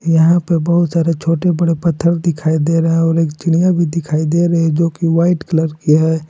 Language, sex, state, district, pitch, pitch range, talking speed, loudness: Hindi, male, Jharkhand, Palamu, 165 Hz, 160-170 Hz, 240 wpm, -14 LUFS